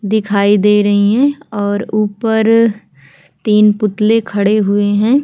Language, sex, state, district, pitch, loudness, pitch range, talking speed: Hindi, female, Chhattisgarh, Kabirdham, 210 Hz, -13 LUFS, 205-225 Hz, 125 wpm